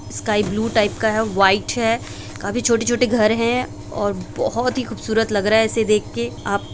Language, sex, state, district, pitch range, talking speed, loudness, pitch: Hindi, male, Bihar, Muzaffarpur, 200-230 Hz, 215 wpm, -19 LUFS, 220 Hz